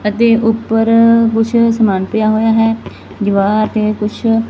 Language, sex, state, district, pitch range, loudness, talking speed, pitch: Punjabi, female, Punjab, Fazilka, 215-230 Hz, -12 LUFS, 135 wpm, 225 Hz